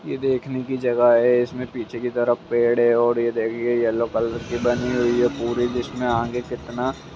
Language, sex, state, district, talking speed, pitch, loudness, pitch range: Hindi, male, Jharkhand, Jamtara, 220 wpm, 120 Hz, -22 LUFS, 120-125 Hz